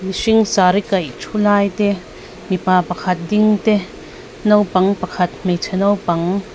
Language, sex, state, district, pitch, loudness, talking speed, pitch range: Mizo, female, Mizoram, Aizawl, 190 Hz, -17 LUFS, 130 wpm, 180-205 Hz